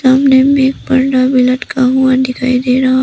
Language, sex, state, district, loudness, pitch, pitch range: Hindi, female, Arunachal Pradesh, Papum Pare, -11 LUFS, 260 Hz, 255-265 Hz